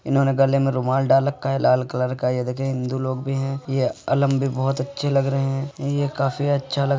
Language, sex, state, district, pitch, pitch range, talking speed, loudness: Hindi, male, Uttar Pradesh, Muzaffarnagar, 135 Hz, 130-140 Hz, 250 wpm, -22 LUFS